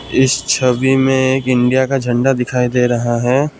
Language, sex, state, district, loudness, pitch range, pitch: Hindi, male, Assam, Kamrup Metropolitan, -14 LUFS, 125-135 Hz, 130 Hz